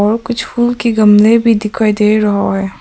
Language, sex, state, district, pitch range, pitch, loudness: Hindi, female, Arunachal Pradesh, Papum Pare, 210-230 Hz, 215 Hz, -12 LUFS